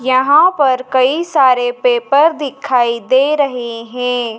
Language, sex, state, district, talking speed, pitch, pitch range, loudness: Hindi, female, Madhya Pradesh, Dhar, 125 wpm, 265 Hz, 250-300 Hz, -13 LUFS